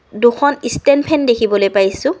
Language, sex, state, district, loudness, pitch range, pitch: Assamese, female, Assam, Kamrup Metropolitan, -14 LUFS, 210-285 Hz, 245 Hz